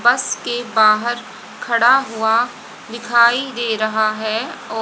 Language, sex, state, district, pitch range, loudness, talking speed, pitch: Hindi, female, Haryana, Jhajjar, 220-240 Hz, -17 LUFS, 110 wpm, 235 Hz